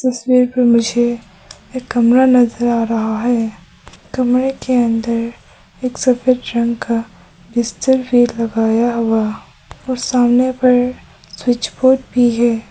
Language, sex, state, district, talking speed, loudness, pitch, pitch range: Hindi, female, Arunachal Pradesh, Papum Pare, 125 wpm, -15 LUFS, 240 Hz, 230-250 Hz